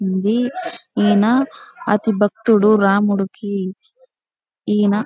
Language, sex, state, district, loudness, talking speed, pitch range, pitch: Telugu, female, Andhra Pradesh, Chittoor, -17 LUFS, 70 wpm, 205-245 Hz, 210 Hz